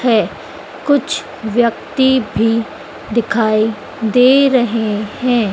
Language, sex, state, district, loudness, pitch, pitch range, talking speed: Hindi, female, Madhya Pradesh, Dhar, -15 LUFS, 235 Hz, 220-255 Hz, 85 wpm